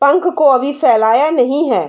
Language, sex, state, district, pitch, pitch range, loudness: Hindi, female, Chhattisgarh, Bilaspur, 285 Hz, 260-305 Hz, -12 LUFS